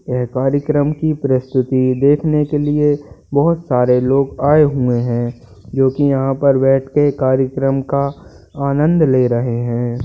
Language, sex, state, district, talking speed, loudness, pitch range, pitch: Hindi, male, Bihar, Purnia, 145 wpm, -16 LUFS, 125-145 Hz, 135 Hz